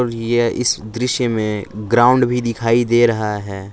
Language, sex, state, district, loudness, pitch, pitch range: Hindi, male, Jharkhand, Palamu, -17 LUFS, 115 Hz, 105-120 Hz